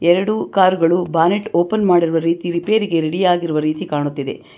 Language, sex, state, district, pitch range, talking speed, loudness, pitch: Kannada, female, Karnataka, Bangalore, 165-185 Hz, 155 wpm, -17 LUFS, 175 Hz